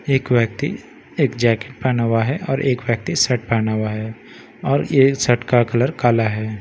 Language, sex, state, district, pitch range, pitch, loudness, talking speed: Hindi, male, Bihar, Katihar, 115-135 Hz, 120 Hz, -19 LUFS, 190 wpm